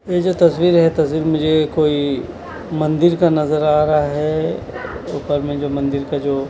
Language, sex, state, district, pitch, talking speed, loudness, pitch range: Hindi, male, Chandigarh, Chandigarh, 155 Hz, 195 wpm, -17 LUFS, 145-160 Hz